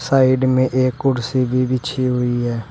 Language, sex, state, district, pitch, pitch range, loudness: Hindi, male, Uttar Pradesh, Shamli, 130 Hz, 125-130 Hz, -18 LUFS